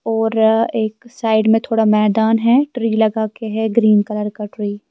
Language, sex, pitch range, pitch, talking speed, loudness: Urdu, female, 215-225 Hz, 220 Hz, 170 wpm, -16 LUFS